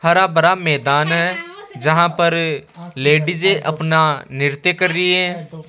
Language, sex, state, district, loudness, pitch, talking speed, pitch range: Hindi, male, Rajasthan, Jaipur, -16 LUFS, 165 Hz, 125 wpm, 155-180 Hz